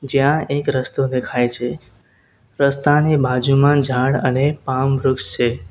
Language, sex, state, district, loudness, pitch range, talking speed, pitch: Gujarati, male, Gujarat, Valsad, -18 LUFS, 125-140 Hz, 125 wpm, 130 Hz